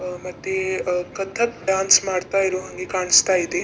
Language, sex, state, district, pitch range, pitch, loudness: Kannada, female, Karnataka, Dakshina Kannada, 180-195 Hz, 185 Hz, -20 LUFS